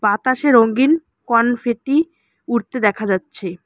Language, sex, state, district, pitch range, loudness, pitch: Bengali, female, West Bengal, Alipurduar, 210-265 Hz, -17 LUFS, 235 Hz